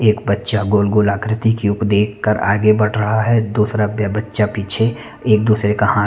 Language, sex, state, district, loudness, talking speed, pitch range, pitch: Hindi, male, Chandigarh, Chandigarh, -16 LUFS, 170 wpm, 105-110 Hz, 105 Hz